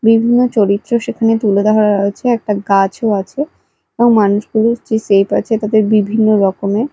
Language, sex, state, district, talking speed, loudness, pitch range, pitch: Bengali, female, Odisha, Malkangiri, 145 wpm, -13 LUFS, 200-230 Hz, 215 Hz